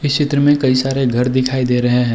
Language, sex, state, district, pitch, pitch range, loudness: Hindi, male, Uttarakhand, Tehri Garhwal, 130 Hz, 125-140 Hz, -15 LUFS